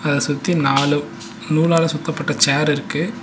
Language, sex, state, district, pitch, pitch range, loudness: Tamil, male, Tamil Nadu, Nilgiris, 145 Hz, 140-160 Hz, -18 LUFS